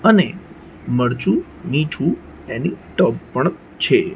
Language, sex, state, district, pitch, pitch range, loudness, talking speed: Gujarati, male, Gujarat, Gandhinagar, 170 Hz, 135-190 Hz, -20 LUFS, 100 wpm